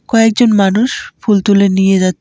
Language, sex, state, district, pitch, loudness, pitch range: Bengali, female, West Bengal, Alipurduar, 200 Hz, -11 LUFS, 195-225 Hz